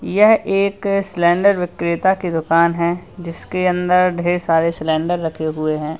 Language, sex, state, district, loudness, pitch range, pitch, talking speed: Hindi, male, Uttar Pradesh, Lalitpur, -17 LUFS, 165-185 Hz, 175 Hz, 150 wpm